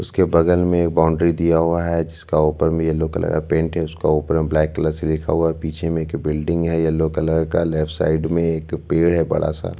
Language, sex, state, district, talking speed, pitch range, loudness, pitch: Hindi, male, Chhattisgarh, Bastar, 250 wpm, 80-85 Hz, -19 LUFS, 80 Hz